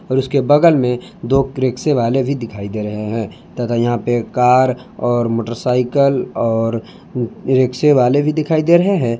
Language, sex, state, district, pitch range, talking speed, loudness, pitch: Hindi, male, Jharkhand, Palamu, 115-140 Hz, 170 wpm, -16 LUFS, 125 Hz